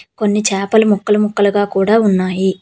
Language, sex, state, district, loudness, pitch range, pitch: Telugu, female, Telangana, Hyderabad, -14 LUFS, 195-210 Hz, 205 Hz